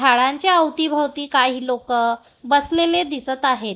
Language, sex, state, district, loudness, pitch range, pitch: Marathi, female, Maharashtra, Gondia, -18 LUFS, 250-305 Hz, 270 Hz